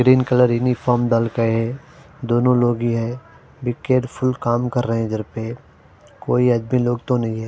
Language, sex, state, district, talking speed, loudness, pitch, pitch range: Hindi, male, Punjab, Fazilka, 185 wpm, -19 LUFS, 120 Hz, 115-125 Hz